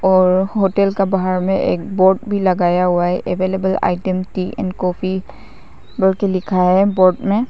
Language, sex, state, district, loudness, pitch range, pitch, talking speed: Hindi, female, Arunachal Pradesh, Papum Pare, -16 LUFS, 185-195 Hz, 185 Hz, 160 wpm